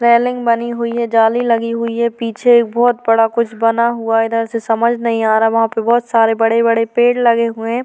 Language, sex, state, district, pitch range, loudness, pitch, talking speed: Hindi, female, Uttar Pradesh, Varanasi, 225-235 Hz, -14 LUFS, 230 Hz, 235 wpm